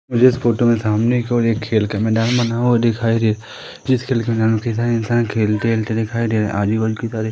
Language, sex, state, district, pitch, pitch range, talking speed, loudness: Hindi, male, Madhya Pradesh, Umaria, 115 Hz, 110-120 Hz, 255 wpm, -18 LUFS